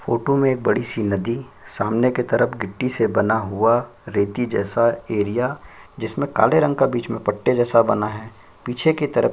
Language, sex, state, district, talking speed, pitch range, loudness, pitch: Hindi, male, Chhattisgarh, Sukma, 180 wpm, 105-125 Hz, -20 LUFS, 115 Hz